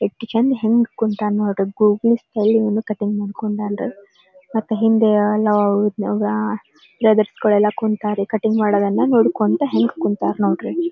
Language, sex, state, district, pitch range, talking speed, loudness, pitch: Kannada, female, Karnataka, Dharwad, 205-225 Hz, 110 wpm, -18 LUFS, 210 Hz